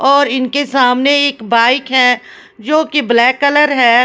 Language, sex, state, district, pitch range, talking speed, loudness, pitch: Hindi, female, Punjab, Pathankot, 245-285 Hz, 175 wpm, -12 LUFS, 260 Hz